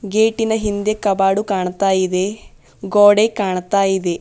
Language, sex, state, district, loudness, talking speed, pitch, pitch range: Kannada, female, Karnataka, Bidar, -17 LUFS, 115 wpm, 200 Hz, 190-215 Hz